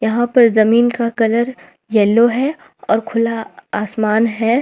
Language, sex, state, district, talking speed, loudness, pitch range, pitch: Hindi, female, Jharkhand, Ranchi, 145 wpm, -15 LUFS, 220-240 Hz, 230 Hz